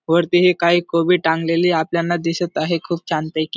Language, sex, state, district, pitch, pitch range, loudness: Marathi, male, Maharashtra, Dhule, 170 Hz, 165-175 Hz, -18 LUFS